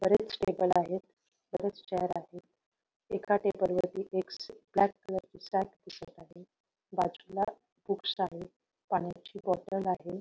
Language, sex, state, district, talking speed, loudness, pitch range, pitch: Marathi, female, Maharashtra, Solapur, 130 wpm, -33 LUFS, 180-200 Hz, 185 Hz